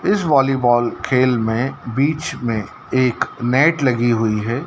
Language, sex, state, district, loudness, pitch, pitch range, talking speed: Hindi, male, Madhya Pradesh, Dhar, -18 LUFS, 125 Hz, 120-135 Hz, 140 wpm